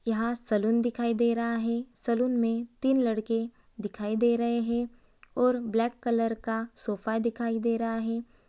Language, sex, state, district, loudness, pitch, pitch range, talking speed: Hindi, female, Bihar, Saran, -29 LUFS, 230 Hz, 225-235 Hz, 170 wpm